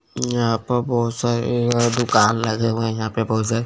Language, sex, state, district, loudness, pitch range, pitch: Hindi, male, Chandigarh, Chandigarh, -20 LUFS, 115-120 Hz, 115 Hz